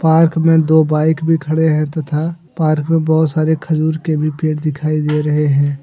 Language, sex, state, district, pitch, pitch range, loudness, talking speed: Hindi, male, Jharkhand, Deoghar, 155 Hz, 155-160 Hz, -15 LUFS, 205 wpm